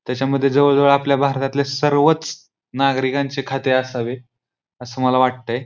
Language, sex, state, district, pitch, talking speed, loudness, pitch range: Marathi, male, Maharashtra, Pune, 135 Hz, 135 wpm, -18 LUFS, 130-140 Hz